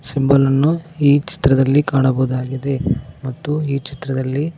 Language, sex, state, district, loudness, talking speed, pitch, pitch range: Kannada, male, Karnataka, Koppal, -17 LUFS, 105 wpm, 140 Hz, 130-145 Hz